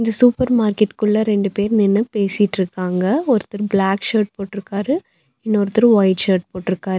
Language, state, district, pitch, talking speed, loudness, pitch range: Tamil, Tamil Nadu, Nilgiris, 205 Hz, 120 wpm, -17 LUFS, 195-220 Hz